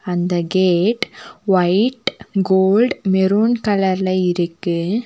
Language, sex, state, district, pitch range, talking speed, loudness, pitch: Tamil, female, Tamil Nadu, Nilgiris, 180-205 Hz, 85 wpm, -17 LUFS, 190 Hz